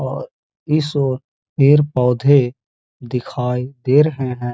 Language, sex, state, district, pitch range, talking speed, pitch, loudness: Hindi, male, Uttar Pradesh, Hamirpur, 125-145 Hz, 105 wpm, 135 Hz, -17 LUFS